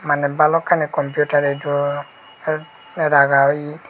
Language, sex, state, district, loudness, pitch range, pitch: Chakma, male, Tripura, Unakoti, -18 LUFS, 145-155 Hz, 145 Hz